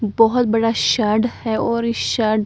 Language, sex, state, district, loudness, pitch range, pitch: Hindi, female, Bihar, Katihar, -18 LUFS, 220-235 Hz, 225 Hz